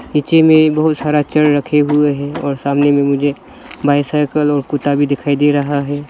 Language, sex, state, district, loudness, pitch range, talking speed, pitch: Hindi, male, Arunachal Pradesh, Lower Dibang Valley, -14 LUFS, 140-150 Hz, 195 wpm, 145 Hz